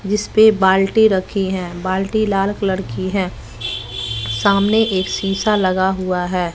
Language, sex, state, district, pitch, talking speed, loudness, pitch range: Hindi, female, Bihar, West Champaran, 190 Hz, 135 wpm, -17 LUFS, 180-200 Hz